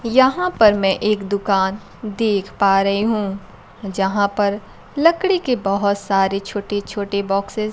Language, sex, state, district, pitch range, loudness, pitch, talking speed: Hindi, female, Bihar, Kaimur, 195-220 Hz, -18 LUFS, 205 Hz, 145 wpm